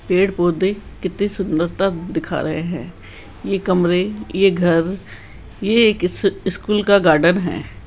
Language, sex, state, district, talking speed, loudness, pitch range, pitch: Hindi, male, Rajasthan, Jaipur, 120 wpm, -18 LUFS, 170-195 Hz, 185 Hz